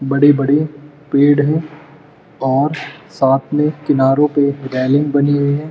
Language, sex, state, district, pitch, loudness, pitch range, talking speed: Hindi, male, Uttar Pradesh, Muzaffarnagar, 145 Hz, -15 LUFS, 140-150 Hz, 125 wpm